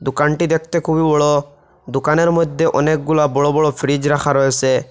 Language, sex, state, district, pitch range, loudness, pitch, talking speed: Bengali, male, Assam, Hailakandi, 145-160 Hz, -16 LUFS, 150 Hz, 160 wpm